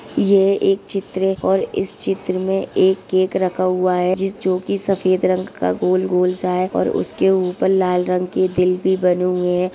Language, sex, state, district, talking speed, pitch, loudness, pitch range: Hindi, female, Uttar Pradesh, Ghazipur, 210 wpm, 185 Hz, -18 LUFS, 180-190 Hz